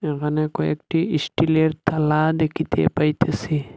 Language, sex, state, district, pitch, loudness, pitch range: Bengali, male, Assam, Hailakandi, 155 Hz, -21 LUFS, 150-160 Hz